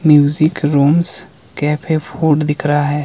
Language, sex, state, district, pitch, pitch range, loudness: Hindi, male, Himachal Pradesh, Shimla, 150 Hz, 145-155 Hz, -15 LUFS